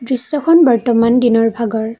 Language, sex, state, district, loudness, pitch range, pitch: Assamese, female, Assam, Kamrup Metropolitan, -13 LUFS, 230-255 Hz, 235 Hz